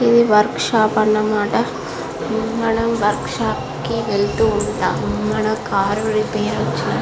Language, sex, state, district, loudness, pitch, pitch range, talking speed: Telugu, female, Andhra Pradesh, Visakhapatnam, -18 LUFS, 215 Hz, 210-225 Hz, 120 wpm